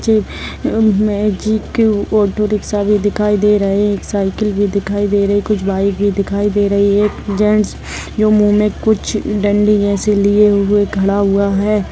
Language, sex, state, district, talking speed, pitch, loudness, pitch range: Hindi, female, Maharashtra, Pune, 155 wpm, 205 Hz, -14 LUFS, 200-210 Hz